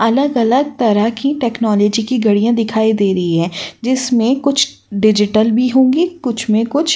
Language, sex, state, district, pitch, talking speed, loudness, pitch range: Hindi, female, Uttar Pradesh, Jyotiba Phule Nagar, 230 Hz, 165 wpm, -14 LUFS, 215-260 Hz